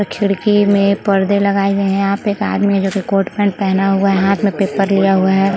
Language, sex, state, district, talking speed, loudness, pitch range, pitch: Hindi, female, Chhattisgarh, Bilaspur, 250 wpm, -14 LUFS, 195-200 Hz, 195 Hz